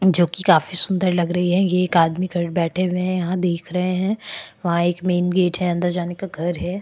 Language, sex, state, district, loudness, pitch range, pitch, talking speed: Hindi, female, Uttar Pradesh, Hamirpur, -20 LUFS, 175-185 Hz, 180 Hz, 235 wpm